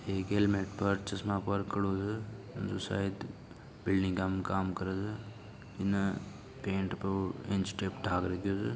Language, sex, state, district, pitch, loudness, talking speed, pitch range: Marwari, male, Rajasthan, Nagaur, 100 Hz, -34 LUFS, 165 wpm, 95-100 Hz